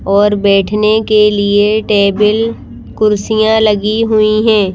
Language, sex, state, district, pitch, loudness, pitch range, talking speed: Hindi, female, Madhya Pradesh, Bhopal, 210 Hz, -11 LUFS, 205-220 Hz, 115 wpm